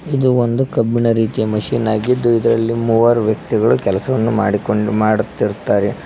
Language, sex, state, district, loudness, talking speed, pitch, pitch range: Kannada, male, Karnataka, Koppal, -16 LUFS, 120 wpm, 115 Hz, 110-120 Hz